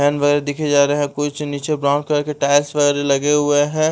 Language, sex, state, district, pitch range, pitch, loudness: Hindi, male, Bihar, West Champaran, 145-150 Hz, 145 Hz, -17 LUFS